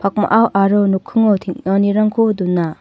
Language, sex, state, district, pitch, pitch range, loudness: Garo, female, Meghalaya, North Garo Hills, 200 Hz, 190-215 Hz, -15 LUFS